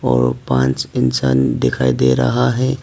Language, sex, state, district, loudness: Hindi, male, Arunachal Pradesh, Papum Pare, -16 LUFS